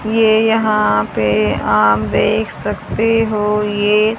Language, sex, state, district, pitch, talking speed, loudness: Hindi, female, Haryana, Charkhi Dadri, 210 Hz, 115 wpm, -15 LUFS